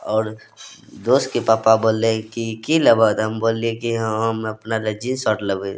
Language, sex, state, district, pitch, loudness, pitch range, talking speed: Maithili, male, Bihar, Madhepura, 110 Hz, -19 LUFS, 110-115 Hz, 185 wpm